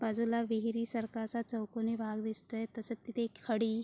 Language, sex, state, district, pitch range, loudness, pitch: Marathi, female, Maharashtra, Sindhudurg, 225-230 Hz, -37 LUFS, 225 Hz